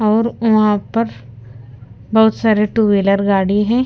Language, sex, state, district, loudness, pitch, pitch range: Hindi, female, Punjab, Kapurthala, -15 LUFS, 210 Hz, 190-220 Hz